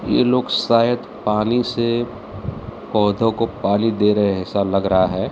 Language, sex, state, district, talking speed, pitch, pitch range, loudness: Hindi, male, Maharashtra, Mumbai Suburban, 170 wpm, 110 Hz, 100-120 Hz, -19 LUFS